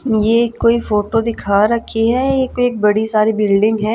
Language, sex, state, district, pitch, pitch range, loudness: Hindi, female, Chhattisgarh, Raipur, 225 Hz, 215-235 Hz, -15 LUFS